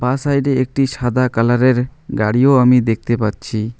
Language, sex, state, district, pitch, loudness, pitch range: Bengali, male, West Bengal, Alipurduar, 125 Hz, -16 LUFS, 120-135 Hz